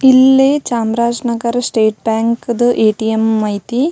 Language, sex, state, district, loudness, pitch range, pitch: Kannada, female, Karnataka, Belgaum, -14 LUFS, 220-245 Hz, 235 Hz